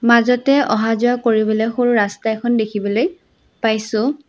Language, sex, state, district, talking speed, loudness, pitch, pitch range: Assamese, female, Assam, Sonitpur, 110 wpm, -17 LUFS, 230 Hz, 220-245 Hz